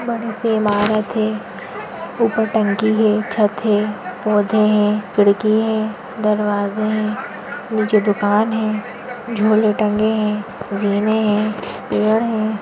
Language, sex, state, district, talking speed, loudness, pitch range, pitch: Hindi, female, Maharashtra, Nagpur, 115 wpm, -18 LUFS, 210-220 Hz, 215 Hz